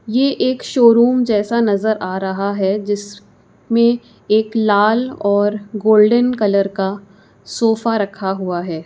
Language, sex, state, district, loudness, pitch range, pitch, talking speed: Hindi, female, Uttar Pradesh, Lucknow, -16 LUFS, 200-230 Hz, 210 Hz, 135 wpm